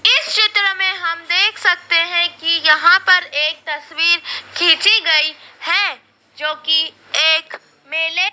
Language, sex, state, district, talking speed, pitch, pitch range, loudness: Hindi, female, Madhya Pradesh, Dhar, 135 wpm, 335 Hz, 315-370 Hz, -15 LUFS